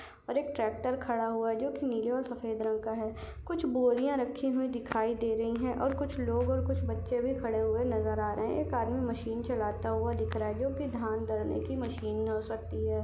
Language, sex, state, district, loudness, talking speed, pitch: Hindi, female, Maharashtra, Solapur, -33 LUFS, 225 wpm, 225 Hz